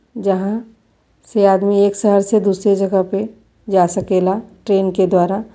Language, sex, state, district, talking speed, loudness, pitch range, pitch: Bhojpuri, female, Uttar Pradesh, Varanasi, 150 wpm, -16 LUFS, 190-210 Hz, 200 Hz